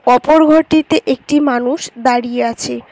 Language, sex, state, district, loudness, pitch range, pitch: Bengali, female, West Bengal, Cooch Behar, -13 LUFS, 240-310 Hz, 255 Hz